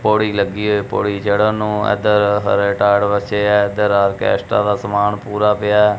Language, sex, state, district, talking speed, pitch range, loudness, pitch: Punjabi, male, Punjab, Kapurthala, 170 wpm, 100-105 Hz, -16 LUFS, 105 Hz